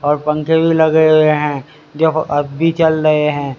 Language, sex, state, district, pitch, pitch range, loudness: Hindi, male, Haryana, Rohtak, 155 Hz, 150-160 Hz, -14 LUFS